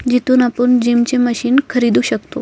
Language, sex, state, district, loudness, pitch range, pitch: Marathi, female, Maharashtra, Solapur, -14 LUFS, 240-250 Hz, 245 Hz